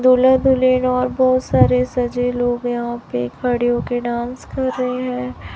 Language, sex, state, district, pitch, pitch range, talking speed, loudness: Hindi, male, Chhattisgarh, Raipur, 245 Hz, 240-255 Hz, 160 wpm, -18 LUFS